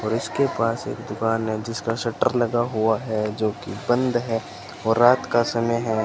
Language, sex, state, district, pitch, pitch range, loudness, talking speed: Hindi, male, Rajasthan, Bikaner, 115 Hz, 110-120 Hz, -23 LUFS, 200 wpm